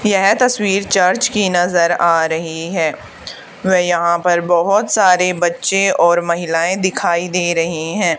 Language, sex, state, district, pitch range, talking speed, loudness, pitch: Hindi, female, Haryana, Charkhi Dadri, 170-195 Hz, 145 wpm, -15 LUFS, 175 Hz